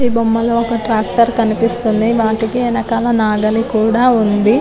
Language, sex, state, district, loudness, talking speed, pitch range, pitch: Telugu, female, Telangana, Nalgonda, -14 LUFS, 130 wpm, 220-235 Hz, 230 Hz